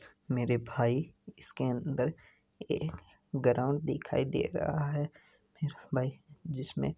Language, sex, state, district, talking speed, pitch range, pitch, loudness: Hindi, male, Rajasthan, Nagaur, 105 wpm, 125-150 Hz, 140 Hz, -34 LUFS